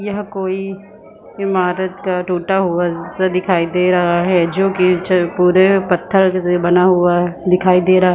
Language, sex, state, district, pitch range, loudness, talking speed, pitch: Hindi, female, Chhattisgarh, Bilaspur, 180-190 Hz, -15 LUFS, 170 wpm, 180 Hz